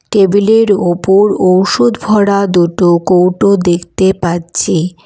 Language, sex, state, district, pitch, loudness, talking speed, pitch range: Bengali, female, West Bengal, Alipurduar, 185 Hz, -11 LUFS, 105 wpm, 175-200 Hz